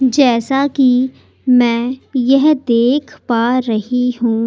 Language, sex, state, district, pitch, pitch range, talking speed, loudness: Hindi, female, Delhi, New Delhi, 250 Hz, 235-265 Hz, 105 wpm, -14 LUFS